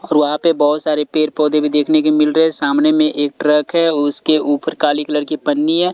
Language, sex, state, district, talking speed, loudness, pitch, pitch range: Hindi, male, Delhi, New Delhi, 240 wpm, -15 LUFS, 150 Hz, 150-155 Hz